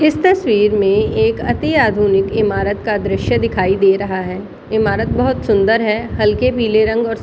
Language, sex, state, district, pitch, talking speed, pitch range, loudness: Hindi, female, Bihar, Jahanabad, 210 Hz, 190 wpm, 195-225 Hz, -15 LUFS